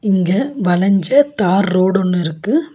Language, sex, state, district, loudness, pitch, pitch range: Tamil, female, Tamil Nadu, Nilgiris, -15 LUFS, 195 Hz, 185-250 Hz